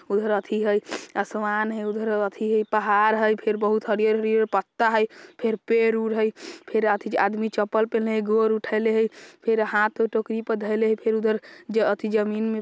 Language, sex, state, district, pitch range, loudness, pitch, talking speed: Bajjika, female, Bihar, Vaishali, 210-220 Hz, -24 LUFS, 220 Hz, 190 wpm